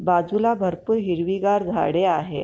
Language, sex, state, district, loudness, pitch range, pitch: Marathi, female, Maharashtra, Pune, -22 LUFS, 180-210 Hz, 190 Hz